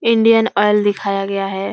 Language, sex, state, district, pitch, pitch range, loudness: Hindi, female, Uttar Pradesh, Etah, 205 Hz, 195-225 Hz, -15 LUFS